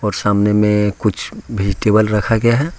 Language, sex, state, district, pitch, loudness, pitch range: Hindi, male, Jharkhand, Ranchi, 105 Hz, -16 LUFS, 105-110 Hz